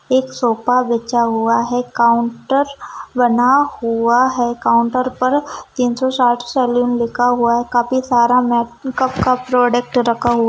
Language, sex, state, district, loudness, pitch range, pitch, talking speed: Hindi, female, Rajasthan, Churu, -16 LUFS, 235-255 Hz, 245 Hz, 150 wpm